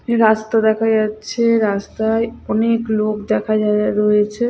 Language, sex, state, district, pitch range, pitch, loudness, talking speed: Bengali, female, Odisha, Khordha, 215-225 Hz, 220 Hz, -17 LUFS, 135 wpm